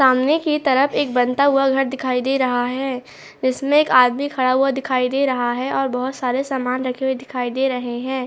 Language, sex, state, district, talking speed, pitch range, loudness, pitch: Hindi, female, Goa, North and South Goa, 220 wpm, 250-270 Hz, -19 LUFS, 260 Hz